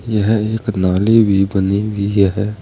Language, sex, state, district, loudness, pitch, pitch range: Hindi, male, Uttar Pradesh, Saharanpur, -15 LUFS, 105 Hz, 100-110 Hz